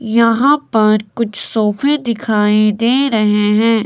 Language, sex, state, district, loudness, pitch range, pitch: Hindi, female, Himachal Pradesh, Shimla, -14 LUFS, 215-235 Hz, 225 Hz